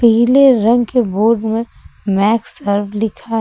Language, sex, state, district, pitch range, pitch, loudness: Hindi, female, Uttar Pradesh, Lucknow, 210-235 Hz, 225 Hz, -14 LUFS